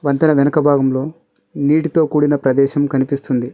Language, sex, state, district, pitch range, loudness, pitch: Telugu, male, Telangana, Mahabubabad, 135-150 Hz, -15 LUFS, 145 Hz